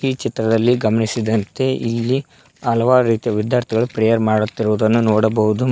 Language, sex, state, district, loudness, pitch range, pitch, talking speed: Kannada, male, Karnataka, Koppal, -17 LUFS, 110-125 Hz, 115 Hz, 95 wpm